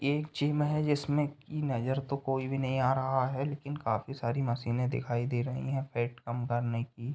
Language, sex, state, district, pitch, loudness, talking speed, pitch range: Hindi, male, Uttar Pradesh, Ghazipur, 135 Hz, -32 LUFS, 225 wpm, 120-140 Hz